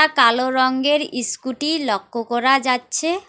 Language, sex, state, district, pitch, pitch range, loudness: Bengali, female, West Bengal, Alipurduar, 260 Hz, 245-295 Hz, -19 LUFS